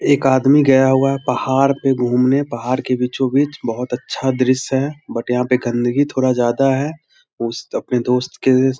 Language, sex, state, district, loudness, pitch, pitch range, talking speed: Hindi, male, Bihar, Sitamarhi, -17 LUFS, 130 Hz, 125-135 Hz, 190 wpm